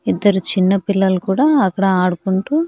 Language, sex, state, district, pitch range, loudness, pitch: Telugu, female, Andhra Pradesh, Annamaya, 190-205 Hz, -16 LUFS, 195 Hz